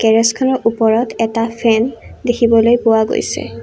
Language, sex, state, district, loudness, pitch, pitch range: Assamese, female, Assam, Kamrup Metropolitan, -14 LUFS, 230 Hz, 225-235 Hz